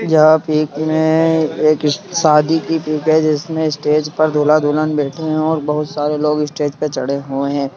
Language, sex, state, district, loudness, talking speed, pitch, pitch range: Hindi, male, Bihar, Saharsa, -16 LUFS, 195 wpm, 155 Hz, 150-155 Hz